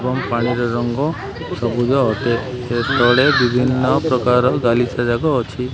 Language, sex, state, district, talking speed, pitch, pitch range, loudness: Odia, male, Odisha, Malkangiri, 125 wpm, 125 Hz, 120-130 Hz, -17 LUFS